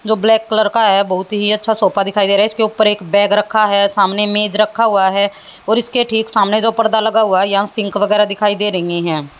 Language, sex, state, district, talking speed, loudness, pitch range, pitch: Hindi, female, Haryana, Jhajjar, 255 wpm, -13 LUFS, 200-220 Hz, 210 Hz